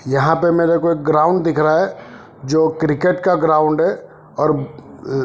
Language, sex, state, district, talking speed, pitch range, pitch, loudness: Hindi, male, Punjab, Fazilka, 185 wpm, 155-170 Hz, 160 Hz, -16 LUFS